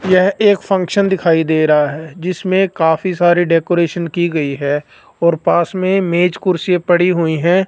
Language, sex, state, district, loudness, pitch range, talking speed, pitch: Hindi, male, Punjab, Fazilka, -15 LUFS, 165-185 Hz, 165 wpm, 175 Hz